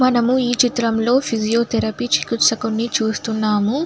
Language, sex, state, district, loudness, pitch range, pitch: Telugu, female, Andhra Pradesh, Anantapur, -18 LUFS, 220-245 Hz, 230 Hz